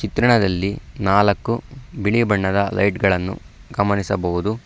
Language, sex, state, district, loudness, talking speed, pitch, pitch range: Kannada, male, Karnataka, Bangalore, -19 LUFS, 90 wpm, 100 Hz, 95-115 Hz